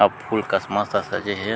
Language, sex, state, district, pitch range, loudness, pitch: Chhattisgarhi, male, Chhattisgarh, Sukma, 95-105 Hz, -23 LUFS, 100 Hz